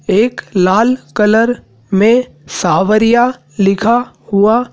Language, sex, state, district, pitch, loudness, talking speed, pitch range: Hindi, male, Madhya Pradesh, Dhar, 220 Hz, -13 LUFS, 90 wpm, 200-240 Hz